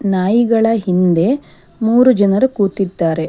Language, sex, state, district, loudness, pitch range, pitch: Kannada, female, Karnataka, Bangalore, -14 LUFS, 185-230 Hz, 200 Hz